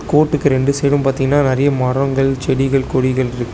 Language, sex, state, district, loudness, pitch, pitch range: Tamil, male, Tamil Nadu, Chennai, -15 LUFS, 135 Hz, 130-140 Hz